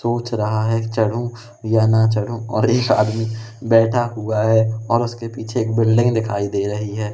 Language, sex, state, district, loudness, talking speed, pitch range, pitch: Hindi, male, Madhya Pradesh, Umaria, -19 LUFS, 185 wpm, 110-115 Hz, 110 Hz